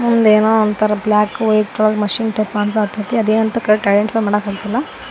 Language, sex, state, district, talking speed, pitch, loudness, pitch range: Kannada, female, Karnataka, Koppal, 175 wpm, 215 Hz, -15 LUFS, 210-225 Hz